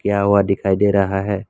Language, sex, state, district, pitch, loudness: Hindi, male, Assam, Kamrup Metropolitan, 100 Hz, -17 LUFS